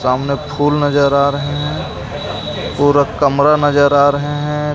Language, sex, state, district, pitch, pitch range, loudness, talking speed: Hindi, male, Jharkhand, Ranchi, 145 Hz, 140-145 Hz, -15 LUFS, 150 wpm